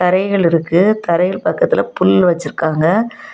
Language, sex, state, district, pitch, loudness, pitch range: Tamil, female, Tamil Nadu, Kanyakumari, 175 Hz, -14 LUFS, 160-200 Hz